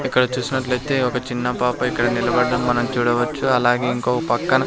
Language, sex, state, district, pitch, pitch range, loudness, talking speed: Telugu, male, Andhra Pradesh, Sri Satya Sai, 125 Hz, 120-125 Hz, -20 LUFS, 165 wpm